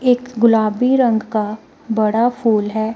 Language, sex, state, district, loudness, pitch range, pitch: Hindi, female, Himachal Pradesh, Shimla, -16 LUFS, 220-245 Hz, 225 Hz